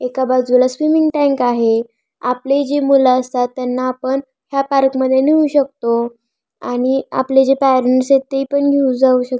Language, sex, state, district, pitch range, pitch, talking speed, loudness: Marathi, female, Maharashtra, Pune, 250-275 Hz, 260 Hz, 155 wpm, -15 LUFS